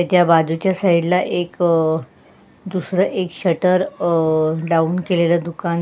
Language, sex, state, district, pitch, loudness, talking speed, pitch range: Marathi, female, Maharashtra, Sindhudurg, 175 Hz, -18 LUFS, 125 wpm, 165-180 Hz